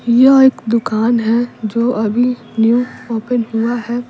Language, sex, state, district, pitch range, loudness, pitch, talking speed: Hindi, female, Bihar, Patna, 225-245 Hz, -15 LUFS, 235 Hz, 145 wpm